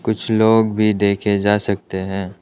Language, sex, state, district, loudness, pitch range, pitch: Hindi, male, Arunachal Pradesh, Lower Dibang Valley, -17 LUFS, 95-110 Hz, 100 Hz